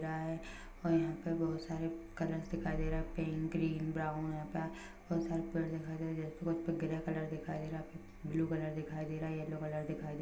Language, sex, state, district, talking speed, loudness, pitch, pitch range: Hindi, female, Jharkhand, Jamtara, 240 wpm, -39 LUFS, 160 Hz, 155-165 Hz